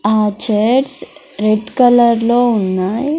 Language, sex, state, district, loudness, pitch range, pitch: Telugu, male, Andhra Pradesh, Sri Satya Sai, -14 LUFS, 210-245 Hz, 230 Hz